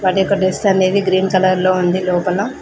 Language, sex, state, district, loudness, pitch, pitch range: Telugu, female, Telangana, Mahabubabad, -15 LUFS, 185 Hz, 185-195 Hz